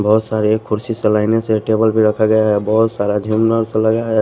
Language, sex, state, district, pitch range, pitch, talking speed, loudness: Hindi, male, Punjab, Pathankot, 105-110 Hz, 110 Hz, 225 wpm, -15 LUFS